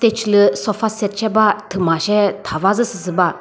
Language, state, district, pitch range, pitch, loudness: Chakhesang, Nagaland, Dimapur, 185-215 Hz, 205 Hz, -17 LUFS